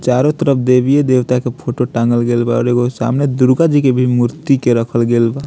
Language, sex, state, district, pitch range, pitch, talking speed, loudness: Bhojpuri, male, Bihar, Muzaffarpur, 120-135 Hz, 125 Hz, 240 wpm, -14 LUFS